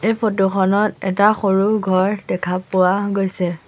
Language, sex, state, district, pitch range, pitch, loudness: Assamese, female, Assam, Sonitpur, 185-205 Hz, 195 Hz, -18 LUFS